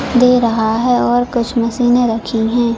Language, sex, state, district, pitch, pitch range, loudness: Hindi, female, Chhattisgarh, Bilaspur, 240 Hz, 230-245 Hz, -14 LUFS